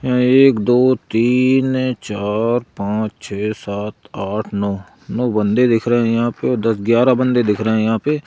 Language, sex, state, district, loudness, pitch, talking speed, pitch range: Hindi, male, Madhya Pradesh, Bhopal, -17 LUFS, 115 Hz, 175 wpm, 105-125 Hz